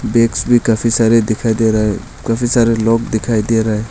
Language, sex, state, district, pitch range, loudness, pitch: Hindi, male, Arunachal Pradesh, Longding, 110-115 Hz, -14 LUFS, 115 Hz